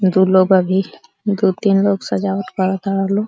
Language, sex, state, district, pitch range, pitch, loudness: Bhojpuri, female, Uttar Pradesh, Deoria, 190-200 Hz, 195 Hz, -16 LUFS